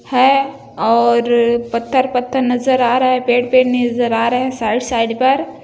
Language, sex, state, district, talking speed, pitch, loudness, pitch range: Hindi, female, Chhattisgarh, Bilaspur, 160 wpm, 245 Hz, -15 LUFS, 235-255 Hz